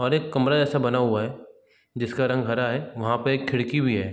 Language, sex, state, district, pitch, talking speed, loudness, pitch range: Hindi, male, Bihar, East Champaran, 130 Hz, 245 wpm, -24 LUFS, 120-140 Hz